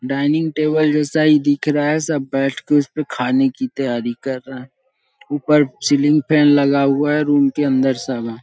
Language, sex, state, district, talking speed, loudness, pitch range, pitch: Hindi, male, Bihar, Saharsa, 205 wpm, -17 LUFS, 135-155 Hz, 145 Hz